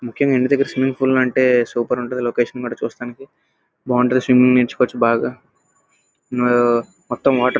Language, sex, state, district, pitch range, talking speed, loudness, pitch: Telugu, male, Andhra Pradesh, Krishna, 120-130 Hz, 150 wpm, -18 LUFS, 125 Hz